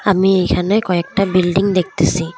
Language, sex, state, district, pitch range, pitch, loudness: Bengali, female, West Bengal, Cooch Behar, 175-195 Hz, 185 Hz, -15 LUFS